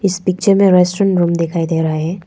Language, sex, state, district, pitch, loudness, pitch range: Hindi, female, Arunachal Pradesh, Papum Pare, 180 Hz, -14 LUFS, 165-195 Hz